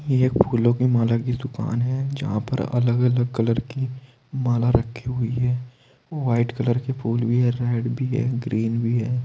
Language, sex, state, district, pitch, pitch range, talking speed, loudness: Hindi, male, Uttar Pradesh, Saharanpur, 125 Hz, 120-130 Hz, 195 wpm, -23 LUFS